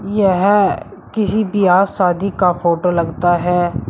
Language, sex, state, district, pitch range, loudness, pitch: Hindi, male, Uttar Pradesh, Shamli, 175-200 Hz, -15 LUFS, 180 Hz